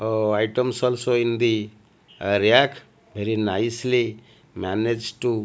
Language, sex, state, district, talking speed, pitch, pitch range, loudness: English, male, Odisha, Malkangiri, 120 wpm, 110 Hz, 105-120 Hz, -22 LUFS